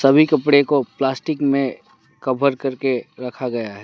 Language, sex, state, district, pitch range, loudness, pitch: Hindi, male, West Bengal, Alipurduar, 125-140 Hz, -19 LUFS, 135 Hz